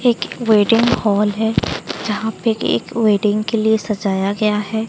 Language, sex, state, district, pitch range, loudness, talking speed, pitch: Hindi, female, Odisha, Sambalpur, 210-225 Hz, -17 LUFS, 160 wpm, 220 Hz